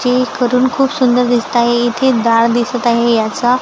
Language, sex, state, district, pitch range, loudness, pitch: Marathi, female, Maharashtra, Gondia, 235-250 Hz, -13 LUFS, 245 Hz